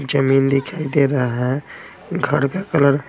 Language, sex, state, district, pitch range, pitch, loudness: Hindi, male, Bihar, Patna, 135-145 Hz, 140 Hz, -19 LUFS